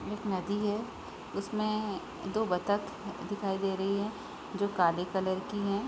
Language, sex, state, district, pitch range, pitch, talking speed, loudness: Hindi, female, Uttar Pradesh, Gorakhpur, 190-210 Hz, 200 Hz, 155 wpm, -33 LUFS